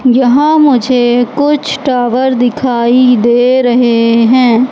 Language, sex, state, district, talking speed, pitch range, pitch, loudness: Hindi, female, Madhya Pradesh, Katni, 100 wpm, 240-260 Hz, 250 Hz, -9 LUFS